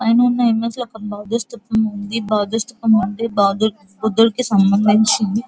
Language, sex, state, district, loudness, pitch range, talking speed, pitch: Telugu, female, Andhra Pradesh, Guntur, -17 LUFS, 210-230 Hz, 120 wpm, 220 Hz